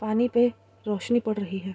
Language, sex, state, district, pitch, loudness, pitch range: Hindi, female, Bihar, East Champaran, 215 Hz, -26 LUFS, 205-240 Hz